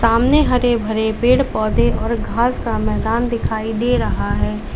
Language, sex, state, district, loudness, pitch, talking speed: Hindi, female, Uttar Pradesh, Lalitpur, -18 LUFS, 230 Hz, 165 wpm